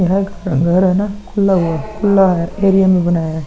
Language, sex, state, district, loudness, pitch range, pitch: Hindi, male, Bihar, Vaishali, -14 LUFS, 170-195 Hz, 185 Hz